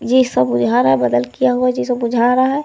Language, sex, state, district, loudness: Hindi, female, Bihar, Darbhanga, -15 LUFS